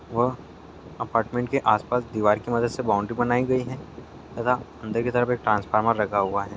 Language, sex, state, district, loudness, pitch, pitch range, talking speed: Hindi, male, Bihar, Darbhanga, -24 LUFS, 120 Hz, 110-125 Hz, 190 wpm